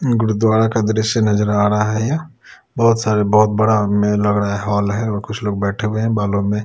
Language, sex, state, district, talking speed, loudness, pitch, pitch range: Hindi, male, Chhattisgarh, Raipur, 200 wpm, -17 LUFS, 105 Hz, 105-110 Hz